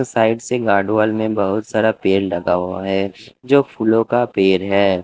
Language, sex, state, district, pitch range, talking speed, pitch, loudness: Hindi, male, Delhi, New Delhi, 95-115 Hz, 180 wpm, 110 Hz, -17 LUFS